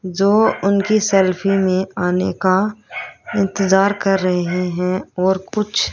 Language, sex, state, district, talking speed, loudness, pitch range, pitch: Hindi, female, Haryana, Rohtak, 120 wpm, -17 LUFS, 185-200 Hz, 195 Hz